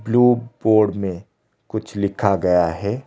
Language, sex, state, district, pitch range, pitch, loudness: Hindi, male, Odisha, Khordha, 100-110 Hz, 105 Hz, -19 LUFS